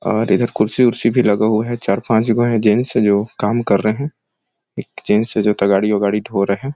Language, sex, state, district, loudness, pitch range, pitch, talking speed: Hindi, male, Chhattisgarh, Sarguja, -16 LUFS, 105-120 Hz, 110 Hz, 230 wpm